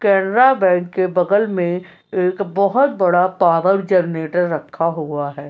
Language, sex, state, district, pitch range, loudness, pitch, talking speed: Hindi, female, Uttar Pradesh, Etah, 170-195 Hz, -17 LUFS, 180 Hz, 140 wpm